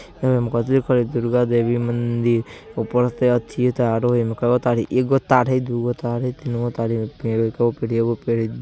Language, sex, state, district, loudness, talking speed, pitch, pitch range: Bajjika, male, Bihar, Vaishali, -20 LUFS, 195 wpm, 120 Hz, 115-125 Hz